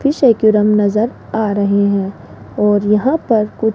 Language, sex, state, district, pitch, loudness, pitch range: Hindi, female, Rajasthan, Jaipur, 210 Hz, -14 LUFS, 205-220 Hz